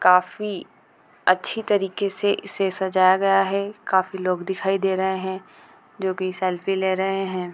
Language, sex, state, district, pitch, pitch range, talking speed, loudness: Hindi, female, Bihar, Gopalganj, 190 Hz, 185-195 Hz, 165 wpm, -22 LUFS